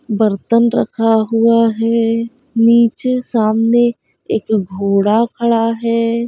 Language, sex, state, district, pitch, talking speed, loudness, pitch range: Hindi, female, Uttar Pradesh, Budaun, 230 Hz, 95 wpm, -14 LUFS, 220-235 Hz